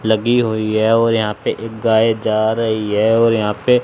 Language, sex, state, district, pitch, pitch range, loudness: Hindi, male, Haryana, Charkhi Dadri, 110 Hz, 110-115 Hz, -16 LUFS